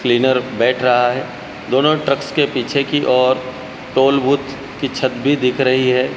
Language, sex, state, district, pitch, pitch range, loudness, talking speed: Hindi, male, Madhya Pradesh, Dhar, 130 Hz, 125-140 Hz, -16 LUFS, 175 wpm